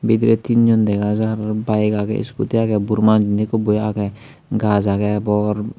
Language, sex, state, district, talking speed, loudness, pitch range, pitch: Chakma, male, Tripura, Dhalai, 195 wpm, -18 LUFS, 105-110 Hz, 105 Hz